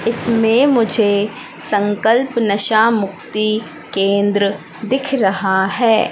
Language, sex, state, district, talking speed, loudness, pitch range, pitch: Hindi, female, Madhya Pradesh, Katni, 90 wpm, -16 LUFS, 200-230 Hz, 215 Hz